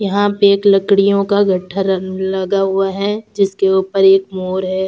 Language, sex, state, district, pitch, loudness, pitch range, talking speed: Hindi, female, Uttar Pradesh, Jalaun, 195 Hz, -14 LUFS, 190-200 Hz, 170 wpm